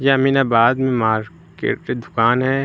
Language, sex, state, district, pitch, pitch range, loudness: Hindi, male, Uttar Pradesh, Lucknow, 125 Hz, 115-135 Hz, -18 LUFS